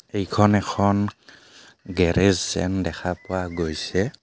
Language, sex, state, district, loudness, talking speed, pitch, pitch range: Assamese, male, Assam, Kamrup Metropolitan, -23 LUFS, 100 wpm, 95 Hz, 90-100 Hz